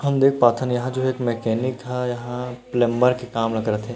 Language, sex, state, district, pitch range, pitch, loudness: Chhattisgarhi, male, Chhattisgarh, Rajnandgaon, 120-125 Hz, 125 Hz, -22 LUFS